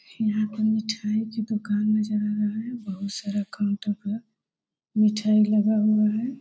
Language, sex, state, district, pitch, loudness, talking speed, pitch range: Hindi, female, Bihar, Muzaffarpur, 215 Hz, -25 LUFS, 160 wpm, 210-215 Hz